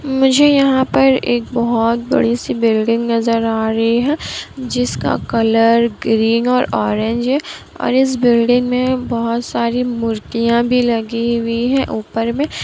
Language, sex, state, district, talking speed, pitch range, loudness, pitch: Hindi, female, Bihar, Kishanganj, 145 wpm, 230-250 Hz, -15 LUFS, 235 Hz